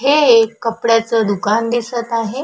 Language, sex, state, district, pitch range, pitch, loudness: Marathi, female, Maharashtra, Chandrapur, 225-240 Hz, 230 Hz, -15 LUFS